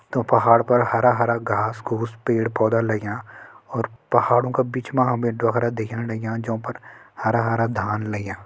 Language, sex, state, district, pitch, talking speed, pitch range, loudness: Hindi, male, Uttarakhand, Uttarkashi, 115 Hz, 175 wpm, 110-120 Hz, -22 LUFS